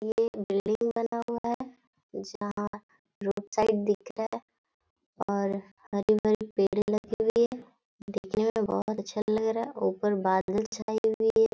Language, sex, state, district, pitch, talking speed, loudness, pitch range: Hindi, female, Jharkhand, Jamtara, 215 Hz, 155 wpm, -29 LUFS, 205-225 Hz